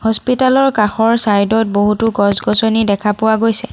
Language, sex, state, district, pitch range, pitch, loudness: Assamese, female, Assam, Sonitpur, 210-225 Hz, 220 Hz, -13 LUFS